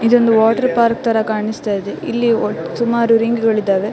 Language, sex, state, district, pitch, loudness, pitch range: Kannada, female, Karnataka, Dakshina Kannada, 230 Hz, -16 LUFS, 220-235 Hz